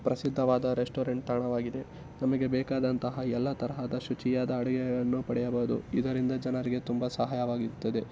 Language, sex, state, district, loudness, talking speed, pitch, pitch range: Kannada, male, Karnataka, Shimoga, -31 LUFS, 110 wpm, 125 Hz, 125-130 Hz